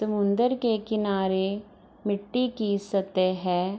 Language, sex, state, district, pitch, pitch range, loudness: Hindi, female, Bihar, East Champaran, 205 Hz, 190-215 Hz, -27 LUFS